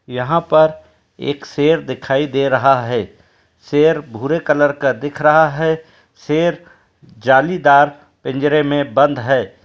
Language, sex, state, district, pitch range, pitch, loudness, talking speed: Hindi, male, Uttar Pradesh, Etah, 130-155 Hz, 145 Hz, -16 LUFS, 130 wpm